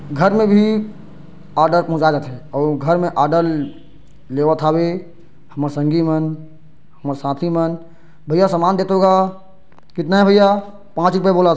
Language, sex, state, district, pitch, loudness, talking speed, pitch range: Chhattisgarhi, male, Chhattisgarh, Bilaspur, 165 Hz, -16 LUFS, 145 wpm, 155-190 Hz